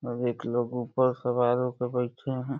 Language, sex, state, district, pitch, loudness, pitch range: Hindi, male, Uttar Pradesh, Deoria, 125 Hz, -28 LUFS, 120-125 Hz